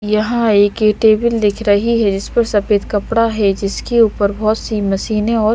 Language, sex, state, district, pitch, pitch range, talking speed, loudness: Hindi, female, Bihar, Patna, 215 Hz, 205-225 Hz, 185 wpm, -15 LUFS